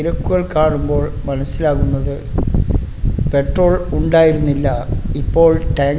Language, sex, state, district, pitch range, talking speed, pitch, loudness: Malayalam, male, Kerala, Kasaragod, 120-160 Hz, 70 wpm, 140 Hz, -16 LUFS